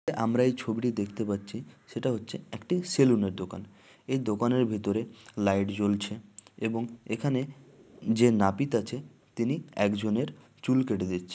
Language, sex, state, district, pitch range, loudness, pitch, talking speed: Bengali, male, West Bengal, Dakshin Dinajpur, 100-125 Hz, -29 LUFS, 110 Hz, 130 wpm